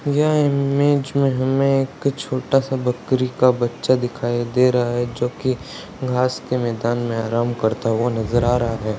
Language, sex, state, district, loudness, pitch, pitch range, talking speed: Hindi, male, Bihar, Purnia, -20 LUFS, 125 Hz, 120-135 Hz, 175 wpm